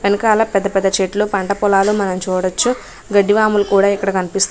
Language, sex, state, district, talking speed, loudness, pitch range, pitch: Telugu, female, Andhra Pradesh, Krishna, 160 wpm, -15 LUFS, 195-205 Hz, 200 Hz